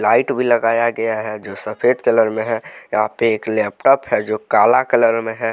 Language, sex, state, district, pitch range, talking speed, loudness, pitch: Hindi, male, Jharkhand, Deoghar, 110-115 Hz, 215 wpm, -17 LUFS, 115 Hz